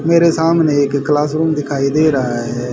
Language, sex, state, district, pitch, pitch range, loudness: Hindi, male, Haryana, Rohtak, 145 Hz, 140-160 Hz, -15 LUFS